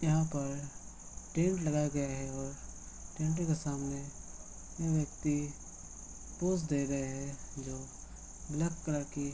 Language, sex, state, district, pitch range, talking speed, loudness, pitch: Hindi, male, Bihar, Madhepura, 140-155 Hz, 135 wpm, -36 LUFS, 145 Hz